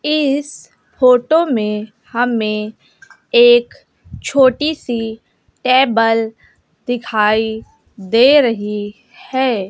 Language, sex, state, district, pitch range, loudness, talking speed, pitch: Hindi, female, Bihar, West Champaran, 220-275 Hz, -15 LUFS, 75 wpm, 240 Hz